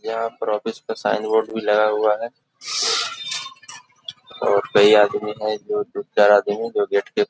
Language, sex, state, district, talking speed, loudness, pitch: Hindi, male, Jharkhand, Jamtara, 180 wpm, -20 LUFS, 130 Hz